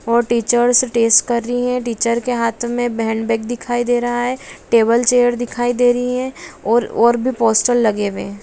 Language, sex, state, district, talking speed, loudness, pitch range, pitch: Hindi, female, Bihar, Araria, 200 wpm, -16 LUFS, 230-245 Hz, 240 Hz